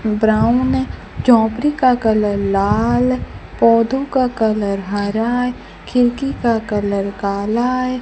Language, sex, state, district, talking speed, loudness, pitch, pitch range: Hindi, female, Rajasthan, Bikaner, 120 wpm, -17 LUFS, 230 Hz, 210-250 Hz